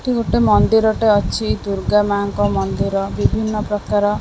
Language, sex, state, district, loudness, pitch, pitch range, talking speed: Odia, female, Odisha, Khordha, -17 LUFS, 205 Hz, 200-220 Hz, 130 wpm